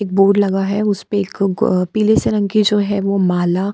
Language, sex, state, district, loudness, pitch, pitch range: Hindi, female, Bihar, Kishanganj, -16 LUFS, 200 Hz, 195-210 Hz